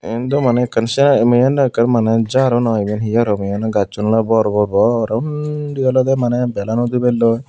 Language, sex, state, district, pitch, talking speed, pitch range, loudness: Chakma, female, Tripura, Unakoti, 120 Hz, 200 wpm, 110-130 Hz, -16 LUFS